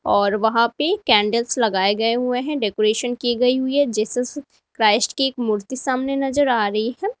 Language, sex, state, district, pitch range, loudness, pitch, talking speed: Hindi, female, Uttar Pradesh, Lalitpur, 215-270 Hz, -20 LUFS, 245 Hz, 190 wpm